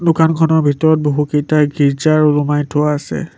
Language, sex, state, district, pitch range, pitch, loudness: Assamese, male, Assam, Sonitpur, 145-160 Hz, 150 Hz, -14 LUFS